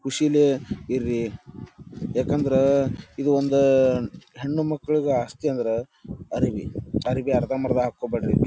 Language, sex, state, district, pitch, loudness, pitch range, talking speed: Kannada, male, Karnataka, Dharwad, 135 Hz, -23 LUFS, 125-145 Hz, 85 wpm